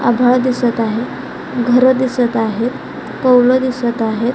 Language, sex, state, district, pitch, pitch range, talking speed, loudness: Marathi, female, Maharashtra, Chandrapur, 245 Hz, 235-255 Hz, 125 wpm, -15 LUFS